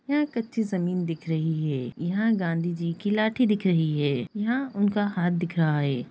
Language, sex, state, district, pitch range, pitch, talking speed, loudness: Hindi, female, Bihar, Gaya, 160-215 Hz, 175 Hz, 185 wpm, -26 LUFS